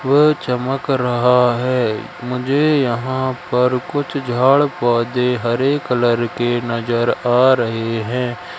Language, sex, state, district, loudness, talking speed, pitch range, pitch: Hindi, male, Madhya Pradesh, Katni, -17 LUFS, 120 wpm, 120-135 Hz, 125 Hz